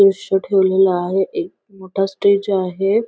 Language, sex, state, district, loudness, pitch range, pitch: Marathi, female, Maharashtra, Sindhudurg, -17 LUFS, 190-200 Hz, 195 Hz